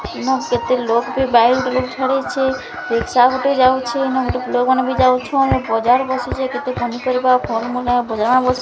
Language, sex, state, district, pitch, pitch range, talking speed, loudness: Odia, female, Odisha, Sambalpur, 255 Hz, 245-260 Hz, 130 wpm, -17 LUFS